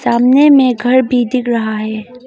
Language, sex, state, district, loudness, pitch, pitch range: Hindi, female, Arunachal Pradesh, Longding, -12 LUFS, 250 Hz, 235-255 Hz